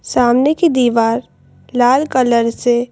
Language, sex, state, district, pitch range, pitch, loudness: Hindi, female, Madhya Pradesh, Bhopal, 240-260 Hz, 245 Hz, -14 LUFS